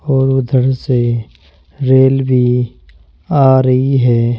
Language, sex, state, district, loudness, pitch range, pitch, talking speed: Hindi, male, Uttar Pradesh, Saharanpur, -13 LUFS, 115-130 Hz, 130 Hz, 110 wpm